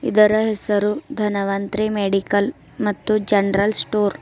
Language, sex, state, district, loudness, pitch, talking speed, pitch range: Kannada, female, Karnataka, Bidar, -19 LUFS, 210 Hz, 115 wpm, 200-215 Hz